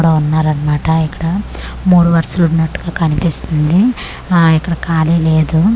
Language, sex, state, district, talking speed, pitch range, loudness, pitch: Telugu, female, Andhra Pradesh, Manyam, 115 wpm, 155-170 Hz, -13 LUFS, 165 Hz